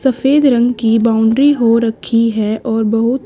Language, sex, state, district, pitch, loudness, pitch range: Hindi, female, Haryana, Charkhi Dadri, 230 Hz, -13 LUFS, 225-255 Hz